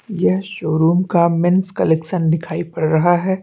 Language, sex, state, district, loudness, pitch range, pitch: Hindi, male, Chhattisgarh, Bastar, -17 LUFS, 160-175 Hz, 170 Hz